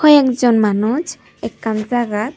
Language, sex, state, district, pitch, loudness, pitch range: Chakma, female, Tripura, Dhalai, 240 Hz, -16 LUFS, 215-275 Hz